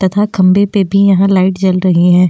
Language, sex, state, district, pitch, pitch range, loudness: Hindi, female, Goa, North and South Goa, 190 Hz, 185-195 Hz, -10 LUFS